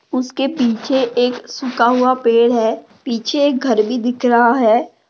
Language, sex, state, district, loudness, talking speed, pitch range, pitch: Hindi, female, Maharashtra, Chandrapur, -16 LUFS, 165 wpm, 235-260 Hz, 245 Hz